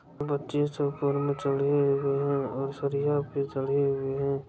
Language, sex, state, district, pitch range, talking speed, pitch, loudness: Maithili, male, Bihar, Darbhanga, 140-145 Hz, 175 wpm, 140 Hz, -28 LUFS